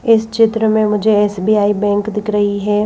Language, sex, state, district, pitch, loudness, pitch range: Hindi, female, Madhya Pradesh, Bhopal, 210 Hz, -14 LUFS, 205-220 Hz